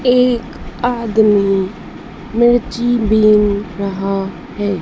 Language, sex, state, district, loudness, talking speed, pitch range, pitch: Hindi, female, Madhya Pradesh, Dhar, -15 LUFS, 75 wpm, 195-240 Hz, 215 Hz